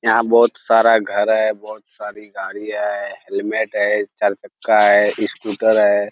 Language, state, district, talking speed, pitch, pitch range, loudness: Surjapuri, Bihar, Kishanganj, 155 wpm, 110 Hz, 105-110 Hz, -17 LUFS